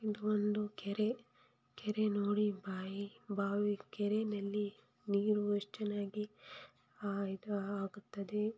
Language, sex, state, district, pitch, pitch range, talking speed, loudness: Kannada, female, Karnataka, Mysore, 205 Hz, 200-210 Hz, 85 wpm, -38 LUFS